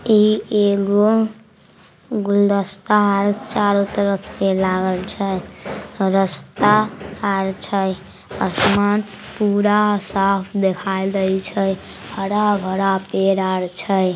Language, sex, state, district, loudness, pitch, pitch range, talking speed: Magahi, female, Bihar, Samastipur, -18 LUFS, 200 Hz, 190-205 Hz, 95 wpm